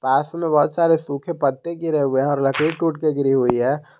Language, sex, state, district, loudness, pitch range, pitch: Hindi, male, Jharkhand, Garhwa, -20 LUFS, 135-165 Hz, 150 Hz